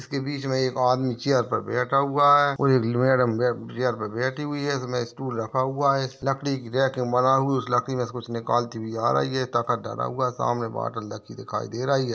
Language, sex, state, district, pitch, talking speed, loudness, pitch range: Hindi, male, Maharashtra, Solapur, 130 Hz, 240 wpm, -24 LUFS, 120-135 Hz